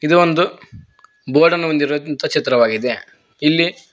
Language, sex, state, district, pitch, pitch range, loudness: Kannada, male, Karnataka, Koppal, 160 Hz, 145-175 Hz, -16 LUFS